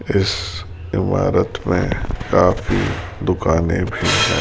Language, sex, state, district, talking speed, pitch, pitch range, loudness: Hindi, male, Rajasthan, Jaipur, 95 wpm, 90 Hz, 85-95 Hz, -19 LUFS